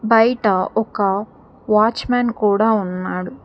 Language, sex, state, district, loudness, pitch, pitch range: Telugu, female, Telangana, Hyderabad, -18 LUFS, 215 Hz, 195-225 Hz